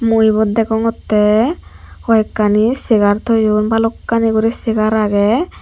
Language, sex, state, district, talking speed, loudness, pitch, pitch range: Chakma, female, Tripura, Unakoti, 105 wpm, -14 LUFS, 220 Hz, 215-225 Hz